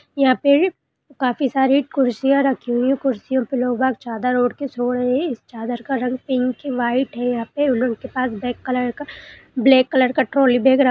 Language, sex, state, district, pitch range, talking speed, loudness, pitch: Hindi, female, Bihar, Purnia, 245-270 Hz, 210 wpm, -19 LUFS, 255 Hz